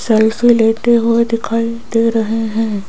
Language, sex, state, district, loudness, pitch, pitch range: Hindi, female, Rajasthan, Jaipur, -14 LUFS, 230 Hz, 220-230 Hz